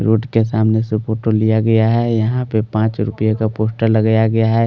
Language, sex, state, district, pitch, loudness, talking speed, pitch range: Hindi, male, Delhi, New Delhi, 110 Hz, -16 LUFS, 230 wpm, 110-115 Hz